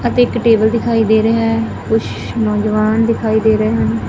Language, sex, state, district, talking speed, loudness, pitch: Punjabi, female, Punjab, Fazilka, 175 wpm, -14 LUFS, 220 Hz